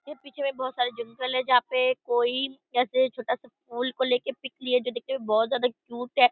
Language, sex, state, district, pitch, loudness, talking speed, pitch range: Hindi, female, Bihar, Purnia, 255 Hz, -27 LUFS, 240 wpm, 245-265 Hz